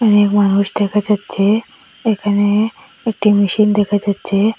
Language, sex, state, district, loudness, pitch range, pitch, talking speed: Bengali, female, Assam, Hailakandi, -15 LUFS, 205-220 Hz, 205 Hz, 115 wpm